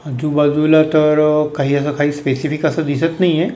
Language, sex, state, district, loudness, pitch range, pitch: Marathi, male, Maharashtra, Mumbai Suburban, -15 LUFS, 145-155 Hz, 150 Hz